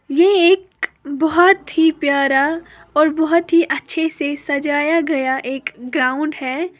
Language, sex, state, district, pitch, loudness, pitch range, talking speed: Hindi, female, Uttar Pradesh, Lalitpur, 310 Hz, -17 LUFS, 280-335 Hz, 130 wpm